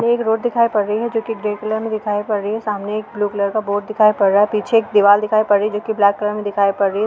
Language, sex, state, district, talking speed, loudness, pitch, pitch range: Hindi, female, Uttar Pradesh, Varanasi, 330 wpm, -17 LUFS, 210 Hz, 205-220 Hz